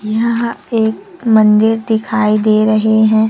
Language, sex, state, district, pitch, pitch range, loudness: Hindi, female, Chhattisgarh, Raipur, 220 Hz, 215-225 Hz, -13 LUFS